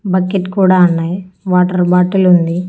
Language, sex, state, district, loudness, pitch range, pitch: Telugu, female, Andhra Pradesh, Annamaya, -12 LUFS, 180-185 Hz, 180 Hz